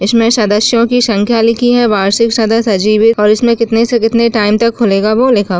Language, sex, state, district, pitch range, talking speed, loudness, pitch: Hindi, female, Bihar, Jahanabad, 210-235 Hz, 225 wpm, -10 LUFS, 225 Hz